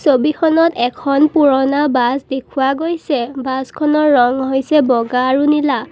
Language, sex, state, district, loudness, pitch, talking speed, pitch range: Assamese, female, Assam, Kamrup Metropolitan, -15 LUFS, 275 Hz, 120 wpm, 260-300 Hz